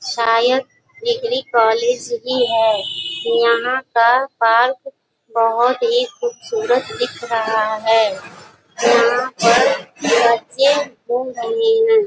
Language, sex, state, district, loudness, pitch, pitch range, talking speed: Hindi, female, Uttar Pradesh, Gorakhpur, -17 LUFS, 245 Hz, 230-290 Hz, 100 wpm